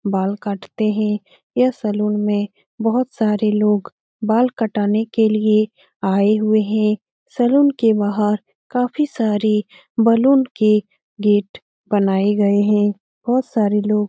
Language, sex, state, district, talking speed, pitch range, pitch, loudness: Hindi, female, Bihar, Lakhisarai, 130 wpm, 205-225 Hz, 215 Hz, -18 LUFS